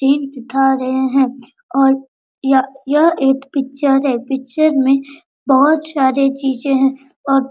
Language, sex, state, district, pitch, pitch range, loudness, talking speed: Hindi, female, Bihar, Araria, 270 Hz, 265-275 Hz, -15 LUFS, 130 wpm